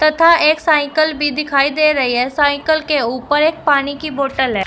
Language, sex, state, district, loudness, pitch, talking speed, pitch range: Hindi, female, Uttar Pradesh, Shamli, -15 LUFS, 295 Hz, 205 wpm, 275-310 Hz